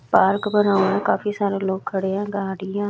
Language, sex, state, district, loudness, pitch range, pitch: Hindi, female, Chhattisgarh, Raipur, -21 LUFS, 190-205 Hz, 200 Hz